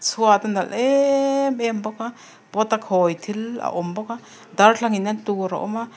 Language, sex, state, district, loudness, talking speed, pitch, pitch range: Mizo, female, Mizoram, Aizawl, -21 LUFS, 220 wpm, 220 Hz, 205-230 Hz